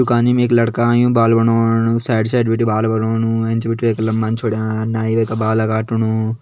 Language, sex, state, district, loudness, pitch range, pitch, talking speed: Kumaoni, male, Uttarakhand, Tehri Garhwal, -16 LUFS, 110-115 Hz, 115 Hz, 215 wpm